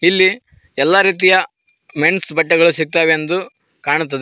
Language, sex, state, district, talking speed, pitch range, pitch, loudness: Kannada, male, Karnataka, Koppal, 100 wpm, 160-185 Hz, 170 Hz, -14 LUFS